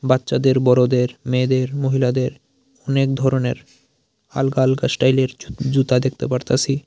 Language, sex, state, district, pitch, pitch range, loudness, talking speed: Bengali, male, Tripura, Unakoti, 130 Hz, 125-135 Hz, -19 LUFS, 105 wpm